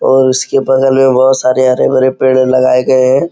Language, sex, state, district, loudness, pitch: Hindi, male, Uttar Pradesh, Muzaffarnagar, -10 LUFS, 130 Hz